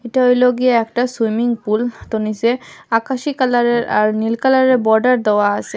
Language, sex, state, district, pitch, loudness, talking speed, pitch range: Bengali, female, Assam, Hailakandi, 235 Hz, -16 LUFS, 165 wpm, 220-250 Hz